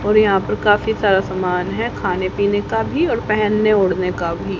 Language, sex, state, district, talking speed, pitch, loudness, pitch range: Hindi, female, Haryana, Rohtak, 210 wpm, 200 Hz, -18 LUFS, 185-215 Hz